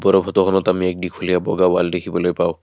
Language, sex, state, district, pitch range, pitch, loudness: Assamese, male, Assam, Kamrup Metropolitan, 90-95 Hz, 90 Hz, -18 LUFS